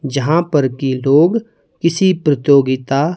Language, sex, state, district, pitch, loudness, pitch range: Hindi, male, Himachal Pradesh, Shimla, 145 Hz, -15 LUFS, 135-170 Hz